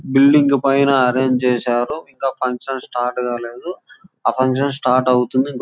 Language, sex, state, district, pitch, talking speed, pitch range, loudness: Telugu, male, Andhra Pradesh, Chittoor, 130 Hz, 140 wpm, 125-140 Hz, -17 LUFS